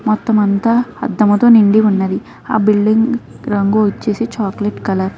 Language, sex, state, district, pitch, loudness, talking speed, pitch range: Telugu, female, Andhra Pradesh, Krishna, 215 Hz, -14 LUFS, 125 wpm, 205-230 Hz